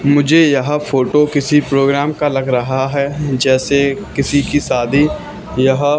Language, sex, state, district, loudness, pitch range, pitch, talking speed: Hindi, male, Haryana, Charkhi Dadri, -14 LUFS, 135-145 Hz, 140 Hz, 140 wpm